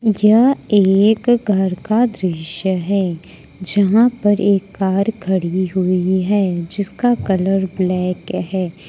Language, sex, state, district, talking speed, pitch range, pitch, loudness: Hindi, female, Jharkhand, Ranchi, 115 wpm, 185-205 Hz, 195 Hz, -16 LUFS